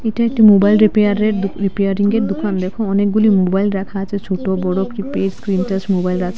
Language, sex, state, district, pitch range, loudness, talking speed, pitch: Bengali, female, Assam, Hailakandi, 190-210 Hz, -16 LUFS, 180 wpm, 200 Hz